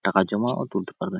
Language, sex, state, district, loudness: Bengali, male, West Bengal, Jhargram, -25 LUFS